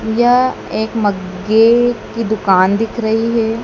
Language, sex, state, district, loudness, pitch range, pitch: Hindi, male, Madhya Pradesh, Dhar, -14 LUFS, 215-230 Hz, 225 Hz